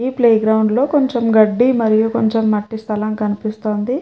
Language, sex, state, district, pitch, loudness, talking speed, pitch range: Telugu, female, Andhra Pradesh, Chittoor, 220 Hz, -16 LUFS, 165 wpm, 215-240 Hz